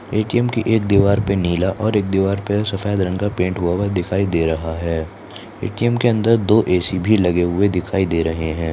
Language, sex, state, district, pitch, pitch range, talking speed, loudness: Hindi, female, Rajasthan, Nagaur, 100 Hz, 90-110 Hz, 220 wpm, -18 LUFS